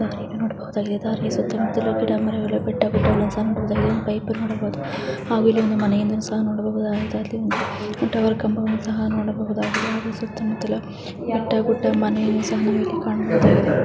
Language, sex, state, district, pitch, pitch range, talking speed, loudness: Kannada, female, Karnataka, Chamarajanagar, 215 Hz, 210-220 Hz, 115 wpm, -22 LUFS